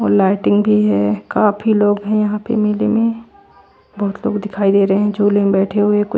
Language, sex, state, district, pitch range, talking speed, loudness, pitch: Hindi, female, Chandigarh, Chandigarh, 195-210 Hz, 225 wpm, -15 LUFS, 205 Hz